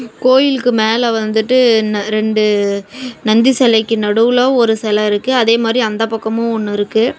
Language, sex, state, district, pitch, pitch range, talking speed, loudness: Tamil, female, Tamil Nadu, Namakkal, 225 Hz, 215-245 Hz, 140 wpm, -13 LUFS